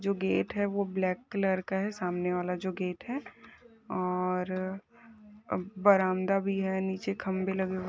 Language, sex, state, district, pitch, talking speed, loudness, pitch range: Hindi, female, Chhattisgarh, Korba, 190 Hz, 150 wpm, -31 LUFS, 185-200 Hz